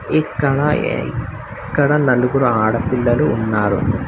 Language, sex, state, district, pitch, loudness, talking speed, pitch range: Telugu, male, Telangana, Hyderabad, 125 Hz, -17 LUFS, 90 wpm, 110-140 Hz